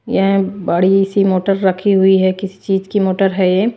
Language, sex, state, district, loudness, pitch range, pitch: Hindi, female, Maharashtra, Washim, -14 LUFS, 190-195 Hz, 195 Hz